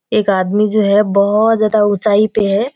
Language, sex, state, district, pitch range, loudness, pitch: Hindi, female, Bihar, Kishanganj, 200-215 Hz, -13 LUFS, 210 Hz